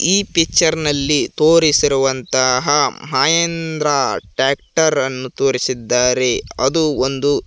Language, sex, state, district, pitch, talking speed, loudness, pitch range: Kannada, male, Karnataka, Koppal, 145 Hz, 80 wpm, -16 LUFS, 130-160 Hz